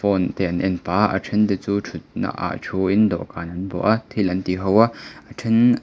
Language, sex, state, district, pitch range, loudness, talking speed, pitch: Mizo, male, Mizoram, Aizawl, 95-110 Hz, -21 LUFS, 265 wpm, 100 Hz